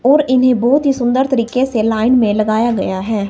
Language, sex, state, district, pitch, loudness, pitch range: Hindi, female, Himachal Pradesh, Shimla, 240 Hz, -14 LUFS, 220-260 Hz